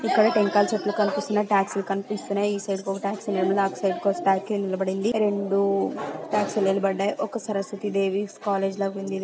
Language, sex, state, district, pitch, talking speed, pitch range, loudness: Telugu, female, Andhra Pradesh, Anantapur, 200 Hz, 190 wpm, 195-205 Hz, -25 LUFS